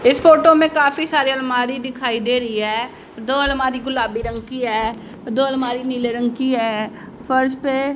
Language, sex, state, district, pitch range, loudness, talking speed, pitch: Hindi, female, Haryana, Rohtak, 230-270 Hz, -18 LUFS, 180 wpm, 250 Hz